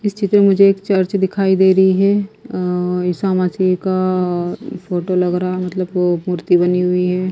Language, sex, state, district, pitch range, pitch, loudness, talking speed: Hindi, female, Himachal Pradesh, Shimla, 180-195 Hz, 185 Hz, -16 LUFS, 195 wpm